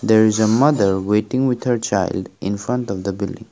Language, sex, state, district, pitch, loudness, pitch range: English, male, Assam, Kamrup Metropolitan, 110 Hz, -19 LUFS, 100-120 Hz